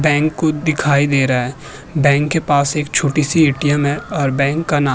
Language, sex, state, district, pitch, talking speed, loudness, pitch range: Hindi, male, Uttar Pradesh, Hamirpur, 145 Hz, 220 wpm, -16 LUFS, 140-155 Hz